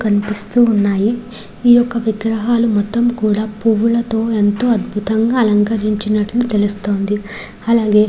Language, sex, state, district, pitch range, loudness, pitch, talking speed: Telugu, female, Andhra Pradesh, Srikakulam, 210-230 Hz, -15 LUFS, 220 Hz, 105 wpm